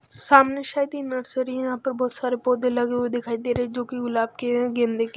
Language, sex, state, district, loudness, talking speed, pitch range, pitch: Hindi, female, Chhattisgarh, Raipur, -23 LUFS, 265 wpm, 245-255 Hz, 250 Hz